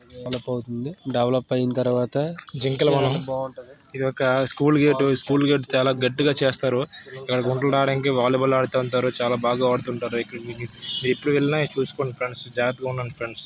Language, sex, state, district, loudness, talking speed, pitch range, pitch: Telugu, male, Andhra Pradesh, Srikakulam, -23 LUFS, 100 wpm, 125-135 Hz, 130 Hz